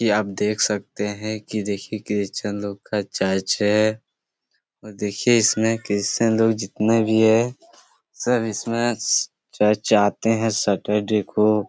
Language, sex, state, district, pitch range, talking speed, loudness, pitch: Hindi, male, Chhattisgarh, Korba, 105-110 Hz, 140 wpm, -21 LUFS, 105 Hz